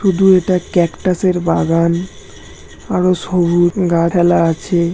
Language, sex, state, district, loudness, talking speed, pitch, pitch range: Bengali, male, West Bengal, Jhargram, -14 LUFS, 85 wpm, 175 Hz, 165-185 Hz